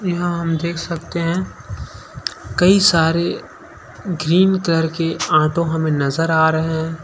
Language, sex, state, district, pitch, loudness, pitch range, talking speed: Hindi, male, Chhattisgarh, Sukma, 165 Hz, -18 LUFS, 160-175 Hz, 130 wpm